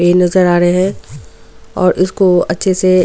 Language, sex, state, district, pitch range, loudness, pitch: Hindi, female, Goa, North and South Goa, 175-185 Hz, -12 LUFS, 180 Hz